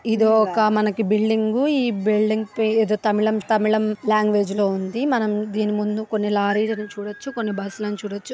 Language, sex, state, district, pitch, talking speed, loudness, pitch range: Telugu, female, Andhra Pradesh, Guntur, 215 Hz, 150 wpm, -21 LUFS, 210-220 Hz